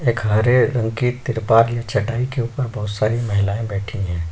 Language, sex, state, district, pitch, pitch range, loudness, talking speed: Hindi, male, Chhattisgarh, Sukma, 115 Hz, 105-120 Hz, -20 LUFS, 195 wpm